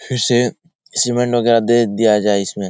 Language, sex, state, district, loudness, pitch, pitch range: Hindi, male, Bihar, Jahanabad, -16 LUFS, 120 Hz, 105-125 Hz